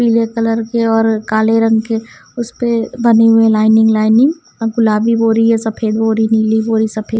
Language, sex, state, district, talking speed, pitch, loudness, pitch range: Hindi, female, Punjab, Kapurthala, 190 wpm, 225 Hz, -13 LUFS, 220-230 Hz